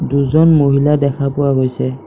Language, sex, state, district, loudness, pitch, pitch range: Assamese, male, Assam, Kamrup Metropolitan, -13 LUFS, 140 Hz, 140-145 Hz